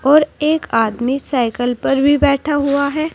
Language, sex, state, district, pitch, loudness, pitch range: Hindi, female, Uttar Pradesh, Saharanpur, 280 Hz, -16 LUFS, 250-295 Hz